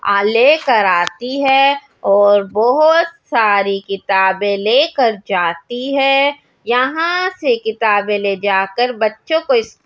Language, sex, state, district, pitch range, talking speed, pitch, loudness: Hindi, female, Delhi, New Delhi, 200-285 Hz, 105 wpm, 240 Hz, -14 LUFS